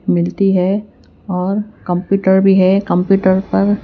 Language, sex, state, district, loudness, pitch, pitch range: Hindi, female, Chhattisgarh, Raipur, -14 LUFS, 190 Hz, 185-200 Hz